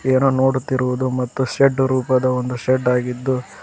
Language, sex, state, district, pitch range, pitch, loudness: Kannada, male, Karnataka, Koppal, 125-130 Hz, 130 Hz, -19 LUFS